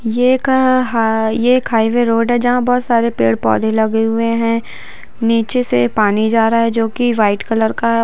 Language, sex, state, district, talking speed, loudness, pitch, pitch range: Hindi, female, Jharkhand, Jamtara, 180 wpm, -14 LUFS, 230 Hz, 220-240 Hz